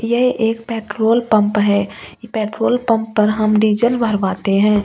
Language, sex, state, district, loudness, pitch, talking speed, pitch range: Hindi, female, Delhi, New Delhi, -16 LUFS, 220 Hz, 160 wpm, 210-230 Hz